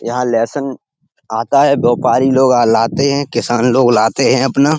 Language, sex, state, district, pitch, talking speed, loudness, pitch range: Hindi, male, Uttar Pradesh, Etah, 125 Hz, 190 wpm, -13 LUFS, 120-140 Hz